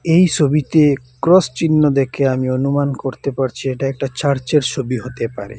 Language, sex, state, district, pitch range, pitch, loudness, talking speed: Bengali, male, Assam, Hailakandi, 130-150 Hz, 135 Hz, -17 LUFS, 160 wpm